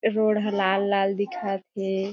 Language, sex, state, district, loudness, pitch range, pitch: Chhattisgarhi, female, Chhattisgarh, Jashpur, -25 LUFS, 195-205 Hz, 195 Hz